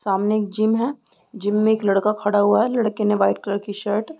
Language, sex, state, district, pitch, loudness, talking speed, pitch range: Hindi, female, Bihar, East Champaran, 210 Hz, -20 LUFS, 260 wpm, 205-220 Hz